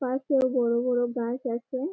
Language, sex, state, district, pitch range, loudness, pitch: Bengali, female, West Bengal, Malda, 240-260 Hz, -26 LUFS, 250 Hz